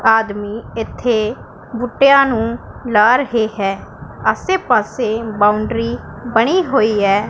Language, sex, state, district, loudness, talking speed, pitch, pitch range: Punjabi, female, Punjab, Pathankot, -16 LUFS, 105 wpm, 225 Hz, 215-245 Hz